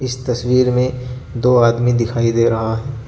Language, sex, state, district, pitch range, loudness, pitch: Hindi, male, Jharkhand, Garhwa, 115-125 Hz, -16 LUFS, 125 Hz